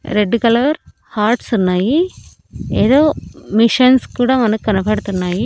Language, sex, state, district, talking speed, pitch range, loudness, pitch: Telugu, female, Andhra Pradesh, Annamaya, 90 wpm, 210-260 Hz, -15 LUFS, 230 Hz